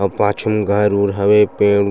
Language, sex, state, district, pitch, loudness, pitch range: Chhattisgarhi, male, Chhattisgarh, Sukma, 105 Hz, -15 LUFS, 100-105 Hz